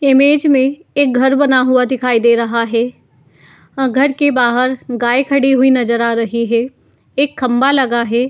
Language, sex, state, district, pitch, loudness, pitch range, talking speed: Hindi, female, Uttar Pradesh, Etah, 255 Hz, -13 LUFS, 240-270 Hz, 190 wpm